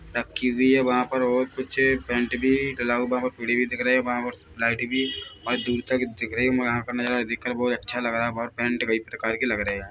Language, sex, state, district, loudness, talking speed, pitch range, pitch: Hindi, male, Chhattisgarh, Bilaspur, -24 LUFS, 260 wpm, 120-125 Hz, 125 Hz